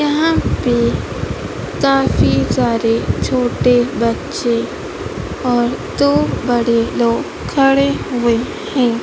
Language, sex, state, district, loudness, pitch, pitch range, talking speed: Hindi, female, Madhya Pradesh, Dhar, -16 LUFS, 240 Hz, 230-255 Hz, 85 wpm